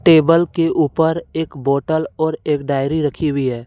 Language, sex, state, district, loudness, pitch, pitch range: Hindi, male, Jharkhand, Deoghar, -17 LUFS, 155 Hz, 140-160 Hz